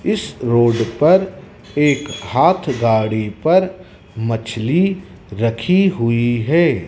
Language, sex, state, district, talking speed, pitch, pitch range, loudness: Hindi, male, Madhya Pradesh, Dhar, 95 wpm, 120 Hz, 115-185 Hz, -17 LUFS